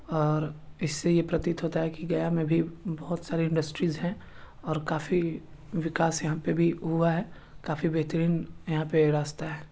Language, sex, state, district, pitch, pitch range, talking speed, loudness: Hindi, male, Bihar, Gaya, 165 Hz, 155-170 Hz, 180 wpm, -29 LUFS